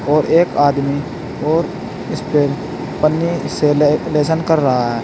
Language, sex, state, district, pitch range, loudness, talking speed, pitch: Hindi, male, Uttar Pradesh, Saharanpur, 140-160 Hz, -16 LUFS, 145 wpm, 150 Hz